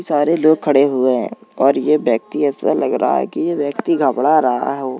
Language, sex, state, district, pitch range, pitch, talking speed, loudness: Hindi, male, Uttar Pradesh, Jalaun, 130-150 Hz, 145 Hz, 215 wpm, -16 LUFS